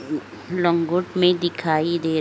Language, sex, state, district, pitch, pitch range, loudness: Hindi, female, Uttar Pradesh, Etah, 175 Hz, 165-180 Hz, -22 LUFS